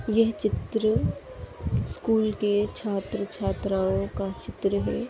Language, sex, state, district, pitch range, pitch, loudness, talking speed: Hindi, female, Uttar Pradesh, Ghazipur, 195-220 Hz, 205 Hz, -27 LUFS, 95 wpm